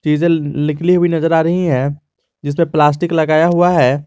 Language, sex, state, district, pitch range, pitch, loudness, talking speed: Hindi, male, Jharkhand, Garhwa, 150-170 Hz, 160 Hz, -14 LUFS, 175 wpm